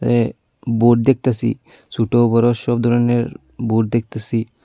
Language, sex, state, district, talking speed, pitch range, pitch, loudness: Bengali, female, Tripura, Unakoti, 105 wpm, 115-120 Hz, 120 Hz, -18 LUFS